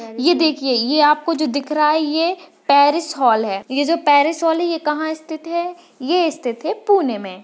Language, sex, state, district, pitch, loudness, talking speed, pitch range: Hindi, female, Maharashtra, Pune, 305 Hz, -17 LUFS, 200 wpm, 280-330 Hz